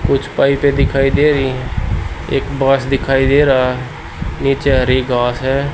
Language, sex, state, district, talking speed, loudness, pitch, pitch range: Hindi, male, Haryana, Charkhi Dadri, 165 wpm, -15 LUFS, 135 Hz, 130-140 Hz